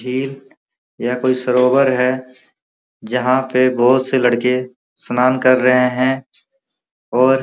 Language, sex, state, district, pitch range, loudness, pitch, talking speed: Hindi, male, Uttar Pradesh, Muzaffarnagar, 125-130 Hz, -16 LUFS, 130 Hz, 130 wpm